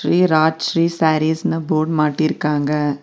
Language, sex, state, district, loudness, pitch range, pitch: Tamil, female, Tamil Nadu, Nilgiris, -17 LUFS, 150-160 Hz, 155 Hz